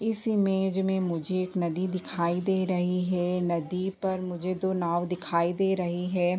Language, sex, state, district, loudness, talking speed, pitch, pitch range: Hindi, female, Jharkhand, Jamtara, -28 LUFS, 180 wpm, 185 Hz, 175-190 Hz